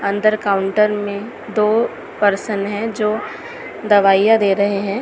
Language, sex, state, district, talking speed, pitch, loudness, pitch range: Hindi, female, Chhattisgarh, Raipur, 130 wpm, 205 Hz, -17 LUFS, 200-215 Hz